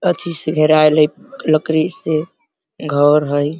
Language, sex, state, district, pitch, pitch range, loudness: Hindi, male, Bihar, Sitamarhi, 155 Hz, 155-175 Hz, -15 LUFS